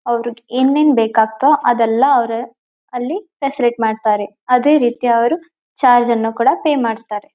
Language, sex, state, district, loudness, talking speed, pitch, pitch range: Kannada, female, Karnataka, Belgaum, -15 LUFS, 140 wpm, 240 Hz, 230-275 Hz